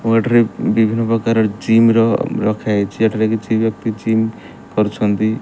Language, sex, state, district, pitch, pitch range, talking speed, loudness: Odia, male, Odisha, Malkangiri, 110 Hz, 105-115 Hz, 145 wpm, -16 LUFS